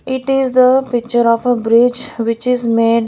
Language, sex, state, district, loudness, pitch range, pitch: English, female, Maharashtra, Gondia, -14 LUFS, 230-255 Hz, 240 Hz